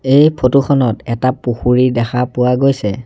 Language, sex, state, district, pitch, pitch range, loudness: Assamese, male, Assam, Sonitpur, 125 Hz, 120-135 Hz, -14 LUFS